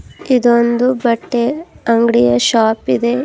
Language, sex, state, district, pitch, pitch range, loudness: Kannada, female, Karnataka, Bidar, 235 Hz, 230-255 Hz, -14 LUFS